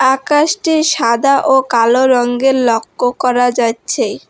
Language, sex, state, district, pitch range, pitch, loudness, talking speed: Bengali, female, West Bengal, Alipurduar, 240-275 Hz, 255 Hz, -13 LUFS, 110 wpm